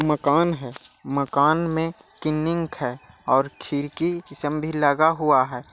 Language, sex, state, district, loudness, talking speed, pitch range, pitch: Hindi, male, Bihar, Jahanabad, -23 LUFS, 115 wpm, 140-160 Hz, 150 Hz